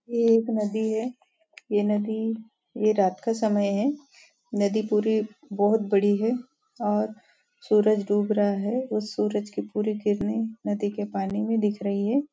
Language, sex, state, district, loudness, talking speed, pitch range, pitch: Hindi, female, Maharashtra, Nagpur, -25 LUFS, 160 wpm, 205-225 Hz, 215 Hz